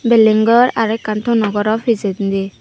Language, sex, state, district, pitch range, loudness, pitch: Chakma, female, Tripura, Unakoti, 205-230 Hz, -15 LUFS, 220 Hz